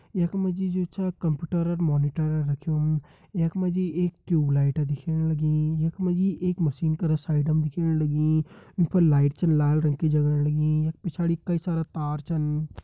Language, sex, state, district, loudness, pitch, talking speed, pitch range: Hindi, male, Uttarakhand, Uttarkashi, -25 LUFS, 160 Hz, 190 wpm, 150-175 Hz